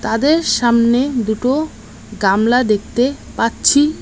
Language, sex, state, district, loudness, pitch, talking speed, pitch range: Bengali, female, West Bengal, Cooch Behar, -15 LUFS, 240 Hz, 90 wpm, 225-280 Hz